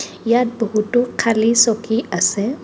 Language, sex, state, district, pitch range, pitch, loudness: Assamese, female, Assam, Kamrup Metropolitan, 220-240 Hz, 230 Hz, -17 LUFS